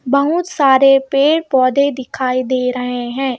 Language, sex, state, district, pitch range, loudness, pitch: Hindi, female, Madhya Pradesh, Bhopal, 255-280 Hz, -15 LUFS, 270 Hz